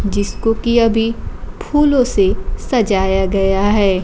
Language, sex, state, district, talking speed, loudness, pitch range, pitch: Hindi, female, Bihar, Kaimur, 120 wpm, -15 LUFS, 195-235 Hz, 205 Hz